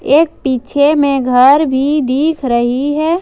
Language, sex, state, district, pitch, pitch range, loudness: Hindi, female, Jharkhand, Ranchi, 280 Hz, 260-300 Hz, -12 LUFS